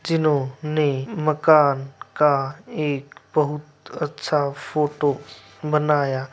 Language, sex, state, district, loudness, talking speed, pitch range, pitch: Hindi, male, Bihar, Begusarai, -22 LUFS, 75 wpm, 140-155 Hz, 150 Hz